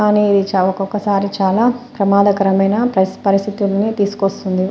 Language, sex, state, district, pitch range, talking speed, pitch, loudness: Telugu, female, Telangana, Nalgonda, 195-210 Hz, 75 wpm, 200 Hz, -15 LUFS